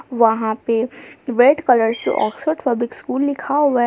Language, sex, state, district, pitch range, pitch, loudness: Hindi, female, Jharkhand, Palamu, 230-275 Hz, 245 Hz, -18 LUFS